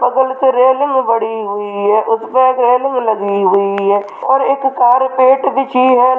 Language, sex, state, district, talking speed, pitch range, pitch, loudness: Hindi, male, Bihar, Begusarai, 165 wpm, 215-260 Hz, 250 Hz, -13 LUFS